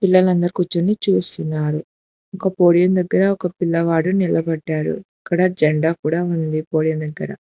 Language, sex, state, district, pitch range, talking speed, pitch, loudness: Telugu, female, Telangana, Hyderabad, 160-185 Hz, 120 wpm, 170 Hz, -19 LUFS